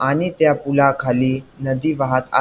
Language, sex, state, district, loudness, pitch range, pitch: Marathi, male, Maharashtra, Pune, -18 LUFS, 130-145 Hz, 135 Hz